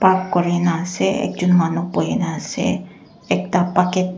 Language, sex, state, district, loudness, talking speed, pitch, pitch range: Nagamese, female, Nagaland, Dimapur, -19 LUFS, 145 wpm, 180 Hz, 175-185 Hz